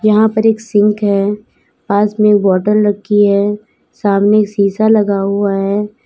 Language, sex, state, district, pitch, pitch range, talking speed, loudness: Hindi, female, Uttar Pradesh, Lalitpur, 205 Hz, 200-210 Hz, 150 wpm, -13 LUFS